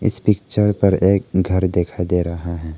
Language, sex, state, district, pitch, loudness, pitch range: Hindi, male, Arunachal Pradesh, Lower Dibang Valley, 95 Hz, -18 LUFS, 85-100 Hz